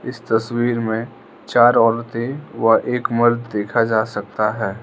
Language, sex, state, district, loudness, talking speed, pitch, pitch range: Hindi, male, Arunachal Pradesh, Lower Dibang Valley, -18 LUFS, 150 wpm, 115 Hz, 110-120 Hz